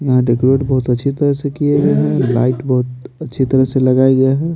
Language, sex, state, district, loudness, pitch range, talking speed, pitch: Hindi, male, Bihar, Patna, -14 LUFS, 125-140 Hz, 225 wpm, 130 Hz